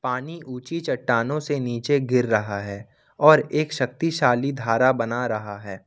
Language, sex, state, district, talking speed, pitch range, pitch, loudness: Hindi, male, Jharkhand, Ranchi, 155 wpm, 115-145 Hz, 125 Hz, -22 LUFS